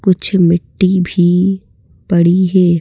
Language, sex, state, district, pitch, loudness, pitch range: Hindi, female, Madhya Pradesh, Bhopal, 180 Hz, -12 LUFS, 175-190 Hz